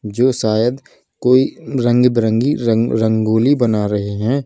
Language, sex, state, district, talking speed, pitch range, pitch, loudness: Hindi, male, Uttar Pradesh, Lalitpur, 135 wpm, 110-125 Hz, 115 Hz, -16 LUFS